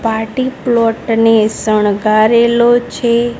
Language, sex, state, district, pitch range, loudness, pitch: Gujarati, female, Gujarat, Gandhinagar, 220-240 Hz, -12 LUFS, 230 Hz